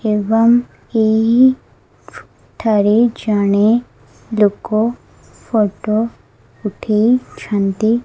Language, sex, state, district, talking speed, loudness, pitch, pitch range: Odia, female, Odisha, Khordha, 50 wpm, -15 LUFS, 220 Hz, 210-235 Hz